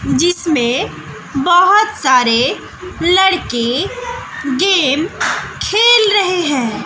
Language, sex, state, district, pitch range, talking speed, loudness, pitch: Hindi, female, Bihar, West Champaran, 265-390 Hz, 70 wpm, -13 LUFS, 350 Hz